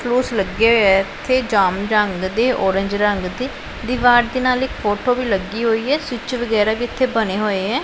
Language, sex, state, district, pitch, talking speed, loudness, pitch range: Punjabi, female, Punjab, Pathankot, 225 Hz, 200 wpm, -18 LUFS, 200-250 Hz